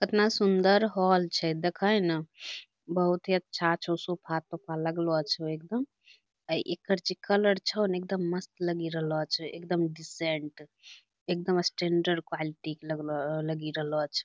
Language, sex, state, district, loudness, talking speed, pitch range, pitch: Angika, female, Bihar, Bhagalpur, -30 LUFS, 145 wpm, 160-185 Hz, 170 Hz